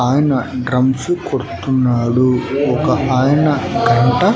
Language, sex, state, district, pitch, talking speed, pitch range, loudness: Telugu, male, Andhra Pradesh, Annamaya, 130 Hz, 80 wpm, 125-140 Hz, -15 LUFS